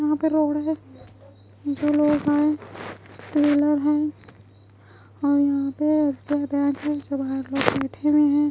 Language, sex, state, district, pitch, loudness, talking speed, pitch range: Hindi, female, Odisha, Khordha, 290 Hz, -22 LUFS, 105 wpm, 270-295 Hz